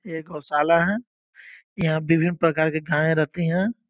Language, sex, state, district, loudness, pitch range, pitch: Hindi, male, Uttar Pradesh, Gorakhpur, -22 LUFS, 155-175 Hz, 165 Hz